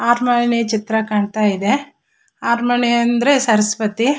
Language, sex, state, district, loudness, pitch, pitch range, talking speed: Kannada, female, Karnataka, Shimoga, -17 LUFS, 235 Hz, 215-245 Hz, 130 wpm